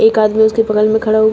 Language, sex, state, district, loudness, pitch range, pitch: Hindi, female, Uttar Pradesh, Shamli, -12 LUFS, 215-220 Hz, 220 Hz